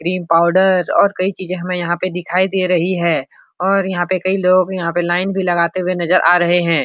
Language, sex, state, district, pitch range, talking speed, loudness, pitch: Hindi, female, Uttar Pradesh, Etah, 175-185 Hz, 235 wpm, -16 LUFS, 180 Hz